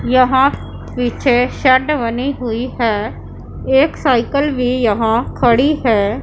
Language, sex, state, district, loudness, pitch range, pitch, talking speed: Hindi, female, Punjab, Pathankot, -15 LUFS, 235-265 Hz, 250 Hz, 115 wpm